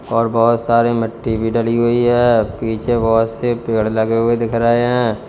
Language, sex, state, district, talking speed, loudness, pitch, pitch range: Hindi, male, Uttar Pradesh, Lalitpur, 195 wpm, -16 LUFS, 115 Hz, 115-120 Hz